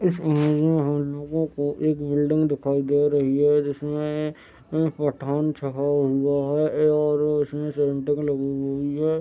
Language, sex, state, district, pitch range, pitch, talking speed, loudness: Hindi, male, Uttar Pradesh, Deoria, 140-150 Hz, 145 Hz, 155 wpm, -23 LUFS